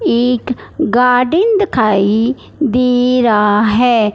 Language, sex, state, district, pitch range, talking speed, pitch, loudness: Hindi, male, Punjab, Fazilka, 220-250 Hz, 85 wpm, 245 Hz, -13 LUFS